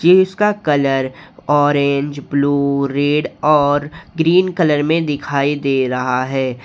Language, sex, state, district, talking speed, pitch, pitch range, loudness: Hindi, male, Jharkhand, Ranchi, 115 wpm, 145 Hz, 140-155 Hz, -16 LUFS